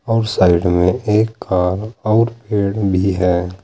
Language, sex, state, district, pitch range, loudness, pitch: Hindi, male, Uttar Pradesh, Saharanpur, 90-110 Hz, -16 LUFS, 100 Hz